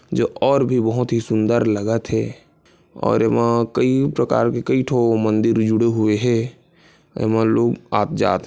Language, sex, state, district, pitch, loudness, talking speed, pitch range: Hindi, male, Chhattisgarh, Kabirdham, 115 Hz, -19 LUFS, 170 wpm, 110-125 Hz